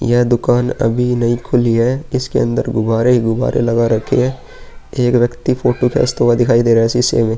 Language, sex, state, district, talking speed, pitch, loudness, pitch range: Hindi, male, Uttar Pradesh, Muzaffarnagar, 205 wpm, 120 Hz, -15 LUFS, 115-125 Hz